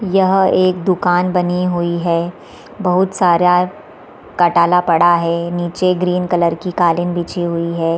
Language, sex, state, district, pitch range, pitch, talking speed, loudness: Hindi, female, Bihar, East Champaran, 170-180 Hz, 175 Hz, 145 wpm, -15 LUFS